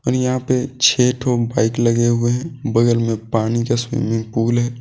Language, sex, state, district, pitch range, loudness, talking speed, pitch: Hindi, male, Jharkhand, Deoghar, 115-125 Hz, -18 LUFS, 185 wpm, 120 Hz